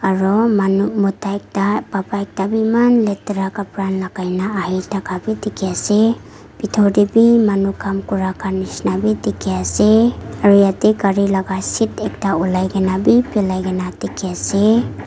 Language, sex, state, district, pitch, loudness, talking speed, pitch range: Nagamese, female, Nagaland, Dimapur, 195 Hz, -17 LUFS, 165 wpm, 190-210 Hz